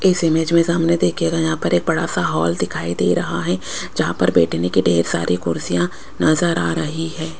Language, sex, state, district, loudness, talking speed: Hindi, female, Rajasthan, Jaipur, -19 LUFS, 205 wpm